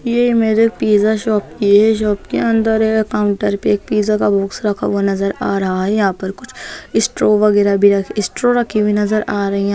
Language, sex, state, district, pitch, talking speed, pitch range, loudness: Hindi, female, Bihar, Gaya, 210 Hz, 215 wpm, 200-220 Hz, -15 LUFS